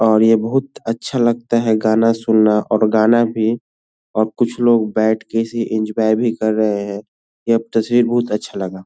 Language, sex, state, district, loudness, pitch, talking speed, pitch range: Hindi, male, Bihar, Lakhisarai, -17 LUFS, 110 Hz, 185 wpm, 110-115 Hz